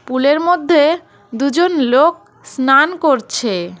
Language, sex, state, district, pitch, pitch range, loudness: Bengali, female, West Bengal, Cooch Behar, 290 Hz, 260-330 Hz, -14 LUFS